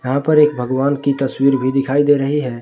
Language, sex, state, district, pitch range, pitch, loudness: Hindi, male, Jharkhand, Garhwa, 130-145 Hz, 140 Hz, -16 LUFS